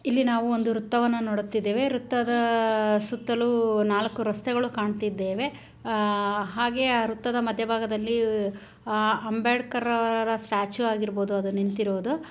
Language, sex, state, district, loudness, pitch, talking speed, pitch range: Kannada, female, Karnataka, Chamarajanagar, -26 LUFS, 225 Hz, 100 wpm, 210-240 Hz